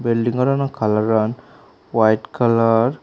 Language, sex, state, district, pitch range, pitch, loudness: Chakma, male, Tripura, Unakoti, 110-125 Hz, 115 Hz, -18 LUFS